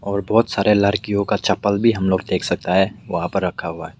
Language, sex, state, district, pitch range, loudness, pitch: Hindi, male, Meghalaya, West Garo Hills, 95-105 Hz, -19 LUFS, 100 Hz